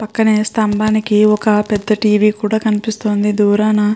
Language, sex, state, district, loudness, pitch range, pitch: Telugu, female, Andhra Pradesh, Krishna, -14 LUFS, 210-215 Hz, 215 Hz